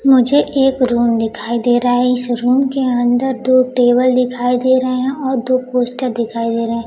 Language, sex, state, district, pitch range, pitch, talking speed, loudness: Hindi, female, Bihar, Kaimur, 240-255 Hz, 250 Hz, 210 wpm, -15 LUFS